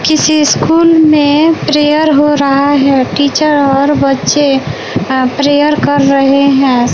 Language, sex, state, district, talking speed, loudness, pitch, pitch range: Hindi, female, Bihar, West Champaran, 130 wpm, -9 LUFS, 285 Hz, 275-300 Hz